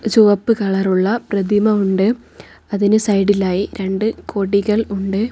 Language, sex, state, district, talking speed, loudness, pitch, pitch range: Malayalam, female, Kerala, Kozhikode, 115 wpm, -17 LUFS, 200 Hz, 195-215 Hz